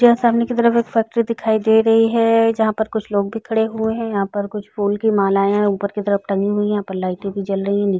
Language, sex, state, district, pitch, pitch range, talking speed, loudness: Hindi, female, Chhattisgarh, Balrampur, 215 Hz, 200-225 Hz, 280 wpm, -18 LUFS